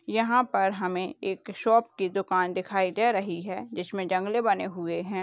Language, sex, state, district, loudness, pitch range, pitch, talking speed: Hindi, female, Rajasthan, Churu, -27 LUFS, 185-210 Hz, 190 Hz, 185 wpm